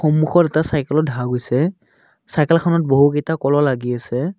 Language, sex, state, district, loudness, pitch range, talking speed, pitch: Assamese, male, Assam, Kamrup Metropolitan, -18 LUFS, 135-160 Hz, 135 wpm, 150 Hz